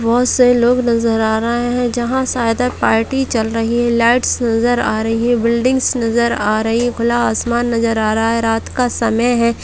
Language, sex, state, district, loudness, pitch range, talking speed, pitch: Hindi, female, Bihar, Purnia, -15 LUFS, 230-245 Hz, 200 wpm, 235 Hz